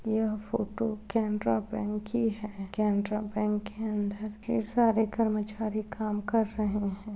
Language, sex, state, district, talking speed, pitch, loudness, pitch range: Hindi, female, Uttar Pradesh, Muzaffarnagar, 140 wpm, 215 Hz, -30 LUFS, 210-220 Hz